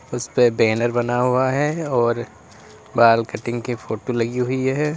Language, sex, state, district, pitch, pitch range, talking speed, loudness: Hindi, male, Uttar Pradesh, Lalitpur, 120 Hz, 115-125 Hz, 170 wpm, -20 LUFS